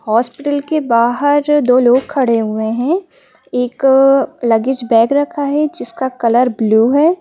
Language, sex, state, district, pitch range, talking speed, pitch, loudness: Hindi, female, Madhya Pradesh, Bhopal, 235-290 Hz, 140 wpm, 260 Hz, -14 LUFS